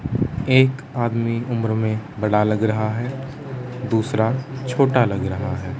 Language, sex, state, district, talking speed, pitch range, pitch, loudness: Hindi, male, Chandigarh, Chandigarh, 135 wpm, 110-130 Hz, 125 Hz, -21 LUFS